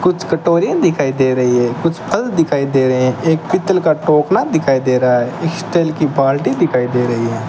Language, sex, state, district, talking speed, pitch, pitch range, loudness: Hindi, male, Rajasthan, Bikaner, 215 wpm, 145 Hz, 130-165 Hz, -15 LUFS